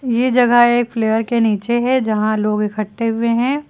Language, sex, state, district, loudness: Hindi, female, Uttar Pradesh, Lucknow, -16 LUFS